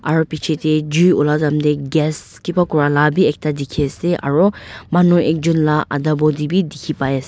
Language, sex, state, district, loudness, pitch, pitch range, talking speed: Nagamese, female, Nagaland, Dimapur, -17 LUFS, 155 Hz, 150-165 Hz, 175 wpm